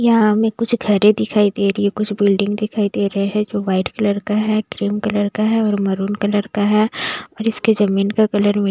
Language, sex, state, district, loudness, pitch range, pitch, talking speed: Hindi, female, Bihar, West Champaran, -17 LUFS, 200-215 Hz, 205 Hz, 240 wpm